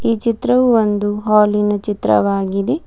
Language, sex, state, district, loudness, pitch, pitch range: Kannada, female, Karnataka, Bidar, -16 LUFS, 210 Hz, 205-230 Hz